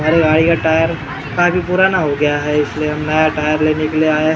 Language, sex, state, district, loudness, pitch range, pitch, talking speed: Hindi, male, Maharashtra, Gondia, -15 LUFS, 150-160 Hz, 155 Hz, 260 wpm